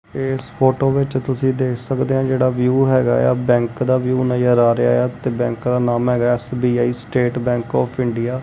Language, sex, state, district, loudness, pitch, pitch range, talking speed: Punjabi, male, Punjab, Kapurthala, -18 LUFS, 125 Hz, 120-130 Hz, 205 wpm